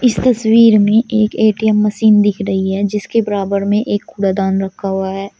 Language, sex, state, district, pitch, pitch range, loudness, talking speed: Hindi, female, Uttar Pradesh, Shamli, 205 Hz, 195-220 Hz, -14 LUFS, 200 wpm